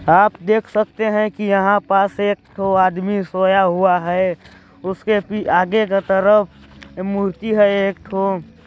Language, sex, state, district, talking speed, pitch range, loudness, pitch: Hindi, male, Chhattisgarh, Balrampur, 145 wpm, 190-210 Hz, -17 LUFS, 195 Hz